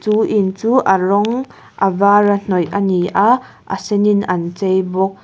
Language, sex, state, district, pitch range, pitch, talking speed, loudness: Mizo, female, Mizoram, Aizawl, 190-210 Hz, 200 Hz, 205 wpm, -15 LUFS